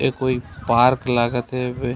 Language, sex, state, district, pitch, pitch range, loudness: Chhattisgarhi, male, Chhattisgarh, Raigarh, 125 Hz, 120-130 Hz, -20 LUFS